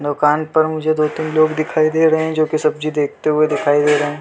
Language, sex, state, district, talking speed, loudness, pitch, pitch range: Hindi, male, Chhattisgarh, Bilaspur, 270 wpm, -16 LUFS, 155 Hz, 150-155 Hz